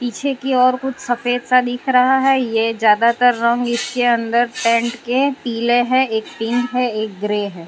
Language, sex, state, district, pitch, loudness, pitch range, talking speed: Hindi, female, Gujarat, Valsad, 245 Hz, -17 LUFS, 230-255 Hz, 185 wpm